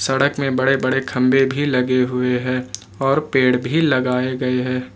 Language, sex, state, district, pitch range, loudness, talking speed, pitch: Hindi, male, Jharkhand, Ranchi, 125-135 Hz, -18 LUFS, 180 wpm, 130 Hz